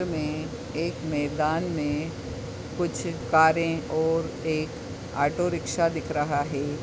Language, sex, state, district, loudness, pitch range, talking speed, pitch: Hindi, male, Chhattisgarh, Bastar, -27 LUFS, 145-165 Hz, 115 wpm, 155 Hz